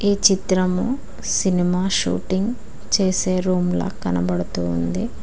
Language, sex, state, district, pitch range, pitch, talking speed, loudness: Telugu, female, Telangana, Mahabubabad, 175-195 Hz, 185 Hz, 80 wpm, -21 LUFS